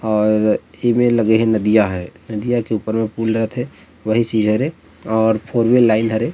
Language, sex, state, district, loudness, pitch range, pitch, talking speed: Chhattisgarhi, male, Chhattisgarh, Rajnandgaon, -17 LUFS, 110-115 Hz, 110 Hz, 200 wpm